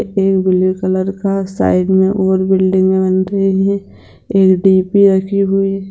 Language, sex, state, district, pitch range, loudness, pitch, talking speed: Hindi, female, Bihar, Jamui, 190-195 Hz, -13 LUFS, 190 Hz, 170 wpm